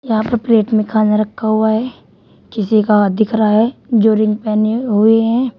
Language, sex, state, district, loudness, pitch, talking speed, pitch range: Hindi, female, Uttar Pradesh, Shamli, -14 LUFS, 220 Hz, 205 wpm, 215-225 Hz